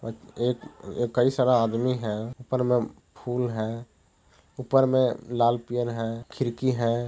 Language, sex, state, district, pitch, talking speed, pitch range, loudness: Hindi, male, Bihar, Jahanabad, 120 Hz, 145 wpm, 115-125 Hz, -26 LUFS